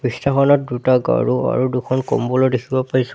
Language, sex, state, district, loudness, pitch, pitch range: Assamese, male, Assam, Sonitpur, -18 LUFS, 130 Hz, 125-130 Hz